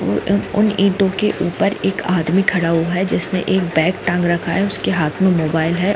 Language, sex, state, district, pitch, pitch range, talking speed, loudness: Hindi, female, Jharkhand, Jamtara, 185 Hz, 175-195 Hz, 190 wpm, -17 LUFS